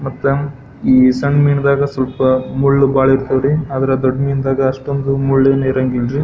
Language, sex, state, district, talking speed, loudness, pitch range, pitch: Kannada, male, Karnataka, Belgaum, 155 wpm, -14 LUFS, 130-140 Hz, 135 Hz